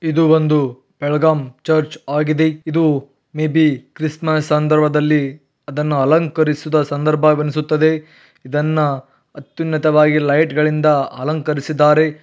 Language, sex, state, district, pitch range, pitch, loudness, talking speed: Kannada, male, Karnataka, Belgaum, 145-155 Hz, 150 Hz, -16 LUFS, 100 wpm